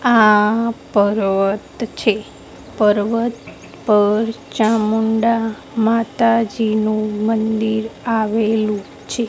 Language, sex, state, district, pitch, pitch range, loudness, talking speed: Gujarati, female, Gujarat, Gandhinagar, 220 Hz, 210-225 Hz, -17 LUFS, 65 wpm